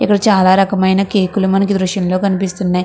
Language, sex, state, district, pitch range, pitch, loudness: Telugu, female, Andhra Pradesh, Krishna, 185-195 Hz, 195 Hz, -14 LUFS